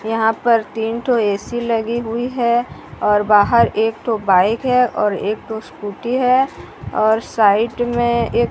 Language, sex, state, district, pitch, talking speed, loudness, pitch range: Hindi, female, Odisha, Sambalpur, 230 Hz, 160 wpm, -17 LUFS, 215-240 Hz